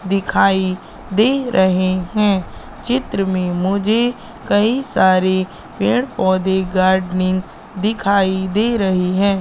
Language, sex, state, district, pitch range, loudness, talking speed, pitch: Hindi, female, Madhya Pradesh, Katni, 185-220 Hz, -17 LUFS, 95 wpm, 195 Hz